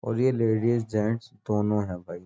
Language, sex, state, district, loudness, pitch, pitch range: Hindi, male, Uttar Pradesh, Jyotiba Phule Nagar, -26 LUFS, 110 Hz, 105-115 Hz